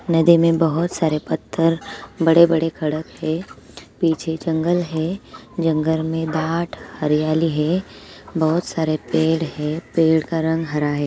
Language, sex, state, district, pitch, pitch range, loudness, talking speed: Hindi, female, Bihar, Gopalganj, 160 Hz, 155-165 Hz, -20 LUFS, 135 wpm